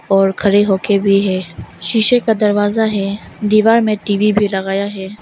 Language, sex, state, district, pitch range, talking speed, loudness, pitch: Hindi, female, Arunachal Pradesh, Longding, 195-215 Hz, 170 wpm, -14 LUFS, 205 Hz